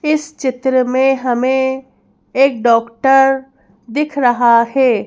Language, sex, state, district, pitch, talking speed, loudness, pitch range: Hindi, female, Madhya Pradesh, Bhopal, 260 Hz, 105 wpm, -14 LUFS, 240-270 Hz